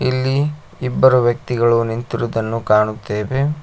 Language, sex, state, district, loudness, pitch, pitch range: Kannada, male, Karnataka, Koppal, -18 LUFS, 120 Hz, 115-130 Hz